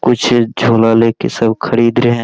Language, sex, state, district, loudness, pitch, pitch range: Hindi, male, Bihar, Araria, -12 LUFS, 115 Hz, 115-120 Hz